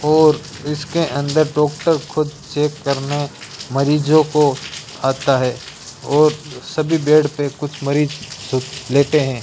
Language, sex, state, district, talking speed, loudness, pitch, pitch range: Hindi, male, Rajasthan, Bikaner, 125 wpm, -18 LUFS, 150 Hz, 140-150 Hz